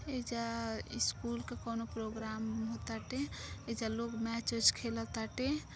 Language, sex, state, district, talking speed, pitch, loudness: Bhojpuri, female, Uttar Pradesh, Deoria, 135 wpm, 225 Hz, -38 LUFS